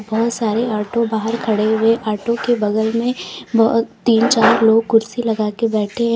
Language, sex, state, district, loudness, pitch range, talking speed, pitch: Hindi, female, Uttar Pradesh, Lalitpur, -17 LUFS, 220-230 Hz, 175 wpm, 225 Hz